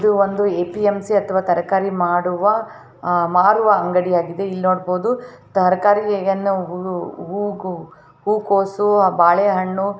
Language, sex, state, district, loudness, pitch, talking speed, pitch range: Kannada, female, Karnataka, Bellary, -18 LUFS, 195 Hz, 115 wpm, 180-205 Hz